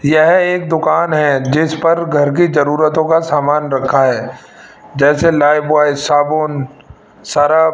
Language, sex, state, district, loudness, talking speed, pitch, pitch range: Hindi, female, Rajasthan, Jaipur, -13 LUFS, 140 wpm, 150 Hz, 145-160 Hz